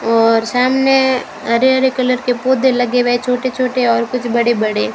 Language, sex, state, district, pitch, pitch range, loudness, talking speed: Hindi, female, Rajasthan, Bikaner, 250 Hz, 235-255 Hz, -14 LUFS, 180 wpm